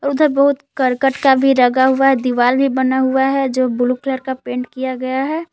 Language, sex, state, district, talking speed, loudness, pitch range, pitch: Hindi, female, Jharkhand, Palamu, 230 wpm, -16 LUFS, 255-275 Hz, 265 Hz